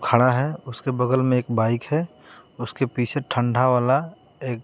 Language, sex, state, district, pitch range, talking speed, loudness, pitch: Hindi, male, Bihar, West Champaran, 120-135 Hz, 170 wpm, -22 LUFS, 125 Hz